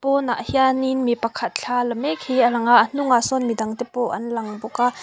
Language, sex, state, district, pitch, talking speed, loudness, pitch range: Mizo, female, Mizoram, Aizawl, 245 Hz, 240 wpm, -20 LUFS, 235-260 Hz